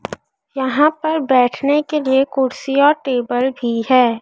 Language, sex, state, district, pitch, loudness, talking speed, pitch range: Hindi, female, Madhya Pradesh, Dhar, 265 Hz, -16 LUFS, 140 wpm, 250-290 Hz